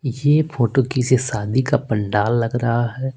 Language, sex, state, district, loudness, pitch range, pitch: Hindi, male, Bihar, Patna, -19 LUFS, 115-135 Hz, 125 Hz